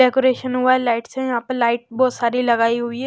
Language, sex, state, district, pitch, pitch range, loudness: Hindi, female, Chhattisgarh, Raipur, 245 Hz, 235-255 Hz, -19 LUFS